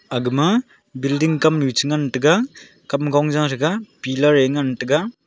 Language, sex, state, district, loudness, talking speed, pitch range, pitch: Wancho, male, Arunachal Pradesh, Longding, -19 LUFS, 135 wpm, 135-155 Hz, 145 Hz